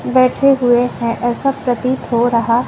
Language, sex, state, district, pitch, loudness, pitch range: Hindi, female, Bihar, West Champaran, 245 Hz, -15 LUFS, 240-255 Hz